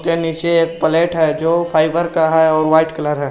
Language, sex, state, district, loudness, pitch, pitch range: Hindi, male, Jharkhand, Garhwa, -15 LUFS, 160 Hz, 160-165 Hz